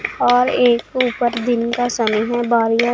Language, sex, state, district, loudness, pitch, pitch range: Hindi, female, Punjab, Pathankot, -17 LUFS, 240 Hz, 230-245 Hz